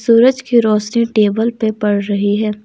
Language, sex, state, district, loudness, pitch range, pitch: Hindi, female, Jharkhand, Deoghar, -14 LUFS, 210-235 Hz, 215 Hz